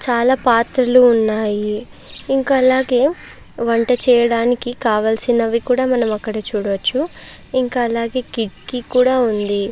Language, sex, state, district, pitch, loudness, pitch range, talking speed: Telugu, female, Andhra Pradesh, Chittoor, 240 Hz, -17 LUFS, 220-255 Hz, 105 wpm